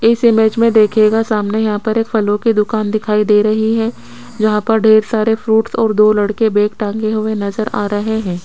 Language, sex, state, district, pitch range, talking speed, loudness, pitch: Hindi, female, Rajasthan, Jaipur, 210-220 Hz, 215 wpm, -14 LUFS, 215 Hz